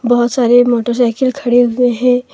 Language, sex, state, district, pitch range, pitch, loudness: Hindi, female, Jharkhand, Deoghar, 240-250 Hz, 245 Hz, -12 LUFS